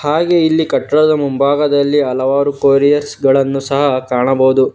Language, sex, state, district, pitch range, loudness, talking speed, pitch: Kannada, male, Karnataka, Bangalore, 135-145 Hz, -13 LUFS, 115 wpm, 140 Hz